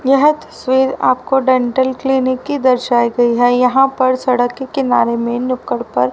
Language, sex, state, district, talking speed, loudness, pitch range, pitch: Hindi, female, Haryana, Charkhi Dadri, 165 wpm, -15 LUFS, 245-265 Hz, 255 Hz